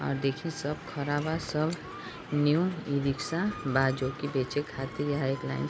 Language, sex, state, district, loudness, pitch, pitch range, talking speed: Bhojpuri, female, Bihar, Gopalganj, -30 LUFS, 145 Hz, 135-155 Hz, 180 wpm